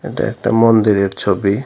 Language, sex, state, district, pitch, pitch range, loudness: Bengali, male, Tripura, Dhalai, 105 Hz, 100-115 Hz, -15 LUFS